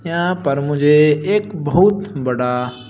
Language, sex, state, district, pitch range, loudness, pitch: Hindi, male, Uttar Pradesh, Shamli, 135-180 Hz, -16 LUFS, 150 Hz